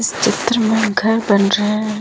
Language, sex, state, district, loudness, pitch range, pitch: Hindi, female, Jharkhand, Ranchi, -16 LUFS, 205-225 Hz, 215 Hz